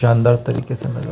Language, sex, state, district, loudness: Hindi, male, Chhattisgarh, Bilaspur, -18 LUFS